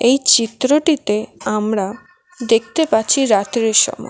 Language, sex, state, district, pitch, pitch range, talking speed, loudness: Bengali, female, West Bengal, Alipurduar, 235 Hz, 215-285 Hz, 105 wpm, -16 LUFS